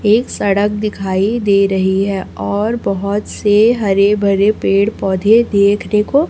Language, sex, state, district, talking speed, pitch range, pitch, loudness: Hindi, female, Chhattisgarh, Raipur, 155 wpm, 195-215 Hz, 205 Hz, -14 LUFS